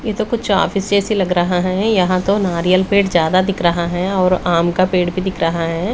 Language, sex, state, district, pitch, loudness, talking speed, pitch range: Hindi, female, Bihar, Patna, 185 Hz, -16 LUFS, 240 wpm, 175-195 Hz